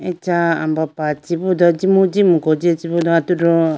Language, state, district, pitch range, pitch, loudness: Idu Mishmi, Arunachal Pradesh, Lower Dibang Valley, 160-180 Hz, 170 Hz, -16 LUFS